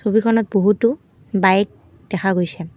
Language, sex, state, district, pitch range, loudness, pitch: Assamese, female, Assam, Kamrup Metropolitan, 190-220 Hz, -18 LUFS, 200 Hz